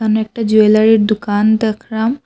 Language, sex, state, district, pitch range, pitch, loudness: Bengali, female, Assam, Hailakandi, 215-220 Hz, 220 Hz, -13 LUFS